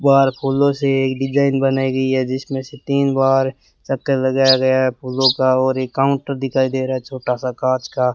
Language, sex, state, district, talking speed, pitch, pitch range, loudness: Hindi, male, Rajasthan, Bikaner, 215 wpm, 130 Hz, 130-135 Hz, -18 LUFS